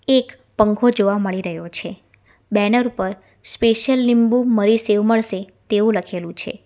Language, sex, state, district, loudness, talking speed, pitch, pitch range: Gujarati, female, Gujarat, Valsad, -18 LUFS, 145 wpm, 215 Hz, 200-235 Hz